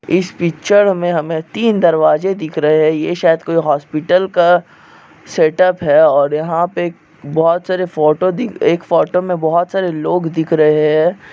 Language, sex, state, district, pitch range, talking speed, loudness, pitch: Hindi, male, Chhattisgarh, Bastar, 155-180 Hz, 170 wpm, -14 LUFS, 170 Hz